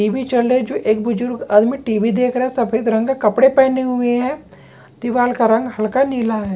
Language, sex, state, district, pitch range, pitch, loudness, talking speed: Hindi, male, Maharashtra, Pune, 225-255 Hz, 240 Hz, -17 LUFS, 230 wpm